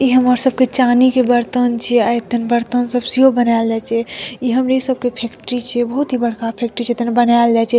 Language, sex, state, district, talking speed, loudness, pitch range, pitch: Maithili, female, Bihar, Madhepura, 225 wpm, -16 LUFS, 235-255 Hz, 245 Hz